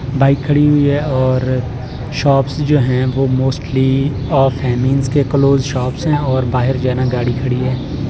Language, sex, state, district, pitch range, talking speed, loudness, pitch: Hindi, male, Delhi, New Delhi, 130-140 Hz, 170 wpm, -15 LUFS, 135 Hz